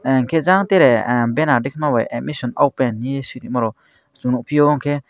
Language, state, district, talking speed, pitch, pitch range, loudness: Kokborok, Tripura, Dhalai, 155 wpm, 135 Hz, 120-150 Hz, -18 LUFS